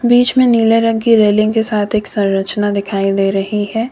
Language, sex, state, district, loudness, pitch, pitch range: Hindi, female, Uttar Pradesh, Lalitpur, -14 LUFS, 215 Hz, 200-225 Hz